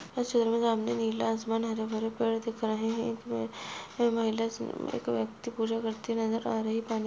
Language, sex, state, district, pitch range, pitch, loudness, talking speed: Hindi, male, Uttar Pradesh, Budaun, 220-230 Hz, 225 Hz, -31 LUFS, 185 wpm